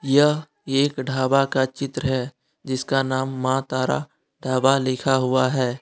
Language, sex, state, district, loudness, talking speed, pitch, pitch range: Hindi, male, Jharkhand, Deoghar, -22 LUFS, 145 wpm, 130 Hz, 130-135 Hz